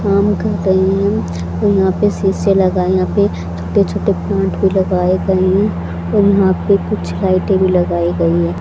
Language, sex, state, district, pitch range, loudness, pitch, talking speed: Hindi, female, Haryana, Jhajjar, 135-200 Hz, -15 LUFS, 190 Hz, 195 wpm